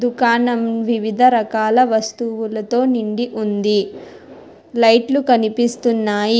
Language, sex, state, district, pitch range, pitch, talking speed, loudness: Telugu, female, Telangana, Hyderabad, 220-245 Hz, 230 Hz, 65 wpm, -17 LUFS